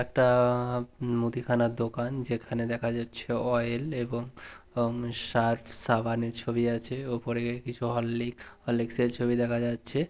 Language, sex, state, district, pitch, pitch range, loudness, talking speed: Bengali, male, West Bengal, Purulia, 120 Hz, 115-120 Hz, -30 LUFS, 125 wpm